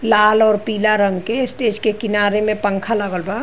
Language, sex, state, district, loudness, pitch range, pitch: Bhojpuri, female, Uttar Pradesh, Ghazipur, -17 LUFS, 205-225 Hz, 215 Hz